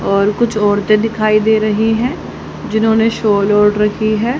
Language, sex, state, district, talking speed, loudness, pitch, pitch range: Hindi, female, Haryana, Jhajjar, 165 wpm, -13 LUFS, 215 Hz, 210-225 Hz